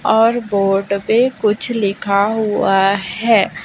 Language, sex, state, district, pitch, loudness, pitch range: Hindi, female, Chhattisgarh, Raipur, 210 Hz, -16 LUFS, 200-225 Hz